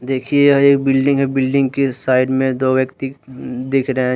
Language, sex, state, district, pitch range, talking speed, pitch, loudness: Hindi, male, Jharkhand, Deoghar, 130-135 Hz, 200 wpm, 135 Hz, -16 LUFS